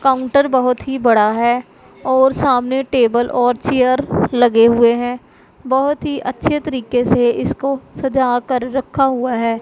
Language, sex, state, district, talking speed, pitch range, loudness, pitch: Hindi, female, Punjab, Pathankot, 150 wpm, 245-270 Hz, -16 LUFS, 255 Hz